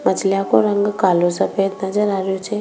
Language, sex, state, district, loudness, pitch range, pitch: Rajasthani, female, Rajasthan, Nagaur, -18 LUFS, 190-205 Hz, 195 Hz